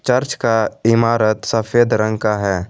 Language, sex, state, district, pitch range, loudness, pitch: Hindi, male, Jharkhand, Garhwa, 110-115 Hz, -16 LUFS, 110 Hz